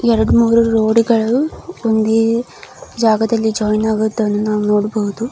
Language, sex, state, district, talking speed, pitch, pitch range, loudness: Kannada, female, Karnataka, Dakshina Kannada, 100 wpm, 220 Hz, 215-230 Hz, -15 LUFS